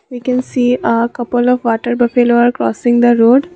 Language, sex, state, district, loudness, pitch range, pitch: English, female, Assam, Kamrup Metropolitan, -13 LUFS, 240-250 Hz, 245 Hz